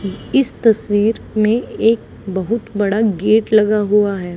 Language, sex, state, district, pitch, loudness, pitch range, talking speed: Hindi, female, Haryana, Charkhi Dadri, 215 Hz, -16 LUFS, 205-220 Hz, 135 wpm